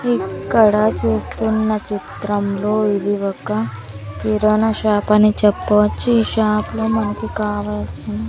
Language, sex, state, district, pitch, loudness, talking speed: Telugu, female, Andhra Pradesh, Sri Satya Sai, 205 Hz, -18 LUFS, 110 wpm